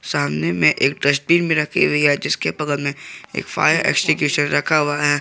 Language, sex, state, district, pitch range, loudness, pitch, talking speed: Hindi, male, Jharkhand, Garhwa, 140-150 Hz, -18 LUFS, 145 Hz, 195 wpm